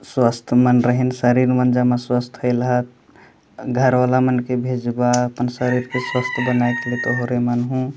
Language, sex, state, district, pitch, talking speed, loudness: Chhattisgarhi, male, Chhattisgarh, Jashpur, 125 Hz, 165 wpm, -19 LUFS